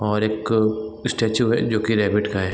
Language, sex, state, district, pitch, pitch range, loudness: Hindi, male, Bihar, East Champaran, 110 Hz, 105-110 Hz, -21 LUFS